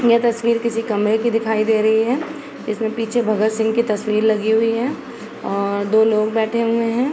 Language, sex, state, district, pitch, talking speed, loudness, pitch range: Hindi, female, Uttar Pradesh, Jalaun, 225 Hz, 200 wpm, -18 LUFS, 220-235 Hz